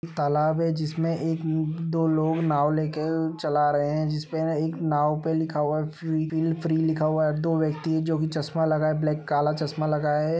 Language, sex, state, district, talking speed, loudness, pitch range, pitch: Hindi, male, Uttar Pradesh, Budaun, 200 wpm, -25 LUFS, 150-160 Hz, 155 Hz